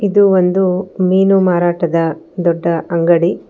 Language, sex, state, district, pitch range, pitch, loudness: Kannada, female, Karnataka, Bangalore, 170-190 Hz, 175 Hz, -14 LUFS